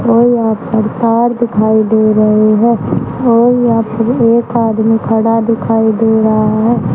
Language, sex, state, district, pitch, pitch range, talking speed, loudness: Hindi, male, Haryana, Charkhi Dadri, 225 Hz, 220-235 Hz, 145 wpm, -11 LUFS